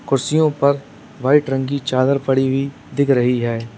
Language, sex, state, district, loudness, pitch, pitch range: Hindi, male, Uttar Pradesh, Lalitpur, -18 LUFS, 135 Hz, 130-140 Hz